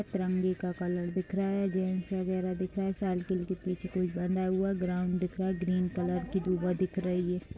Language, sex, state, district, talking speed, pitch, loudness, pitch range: Hindi, female, Bihar, Saran, 240 wpm, 185 Hz, -32 LUFS, 180-190 Hz